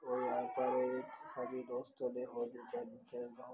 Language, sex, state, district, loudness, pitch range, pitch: Hindi, male, Bihar, Lakhisarai, -41 LUFS, 125-130 Hz, 125 Hz